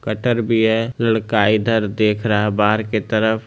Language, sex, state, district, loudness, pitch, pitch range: Hindi, male, Bihar, Begusarai, -18 LUFS, 110 Hz, 105-115 Hz